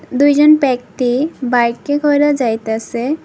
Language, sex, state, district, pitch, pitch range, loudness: Bengali, female, Tripura, West Tripura, 260 Hz, 240-290 Hz, -14 LUFS